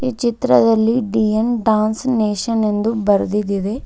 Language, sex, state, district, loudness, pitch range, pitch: Kannada, female, Karnataka, Bidar, -17 LUFS, 210-235 Hz, 220 Hz